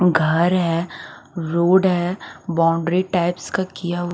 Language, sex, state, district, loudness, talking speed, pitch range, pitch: Hindi, female, Haryana, Charkhi Dadri, -20 LUFS, 115 wpm, 170-180 Hz, 175 Hz